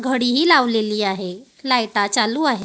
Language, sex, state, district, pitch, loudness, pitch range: Marathi, female, Maharashtra, Gondia, 245 Hz, -18 LUFS, 205-260 Hz